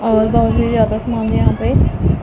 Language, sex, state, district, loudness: Hindi, female, Punjab, Pathankot, -15 LUFS